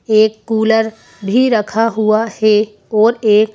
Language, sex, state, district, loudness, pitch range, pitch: Hindi, female, Madhya Pradesh, Bhopal, -14 LUFS, 215-225 Hz, 220 Hz